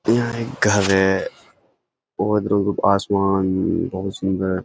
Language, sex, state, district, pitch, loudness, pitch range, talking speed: Hindi, male, Uttarakhand, Uttarkashi, 100 Hz, -20 LUFS, 95-105 Hz, 115 wpm